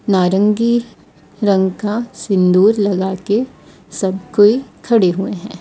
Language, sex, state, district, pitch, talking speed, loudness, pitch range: Hindi, female, Odisha, Sambalpur, 205 Hz, 105 wpm, -15 LUFS, 190-220 Hz